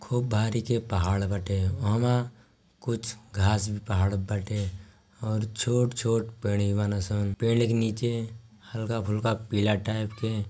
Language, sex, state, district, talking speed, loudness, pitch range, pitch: Bhojpuri, male, Bihar, Gopalganj, 145 wpm, -28 LUFS, 100-115 Hz, 110 Hz